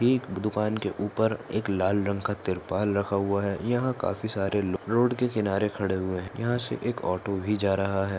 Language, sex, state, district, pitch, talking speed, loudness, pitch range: Hindi, male, Maharashtra, Solapur, 100 Hz, 220 wpm, -28 LUFS, 95-110 Hz